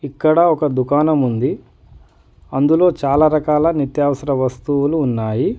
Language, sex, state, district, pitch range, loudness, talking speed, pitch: Telugu, male, Telangana, Adilabad, 135-155 Hz, -16 LUFS, 105 wpm, 145 Hz